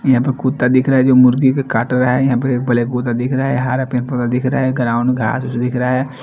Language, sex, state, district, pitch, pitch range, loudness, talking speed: Hindi, male, Chandigarh, Chandigarh, 125 Hz, 125-130 Hz, -15 LUFS, 230 wpm